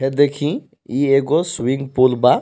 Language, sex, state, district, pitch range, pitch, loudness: Bhojpuri, male, Jharkhand, Palamu, 130-145 Hz, 135 Hz, -18 LUFS